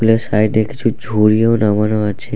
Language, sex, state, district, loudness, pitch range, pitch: Bengali, male, West Bengal, Purulia, -15 LUFS, 105-115 Hz, 110 Hz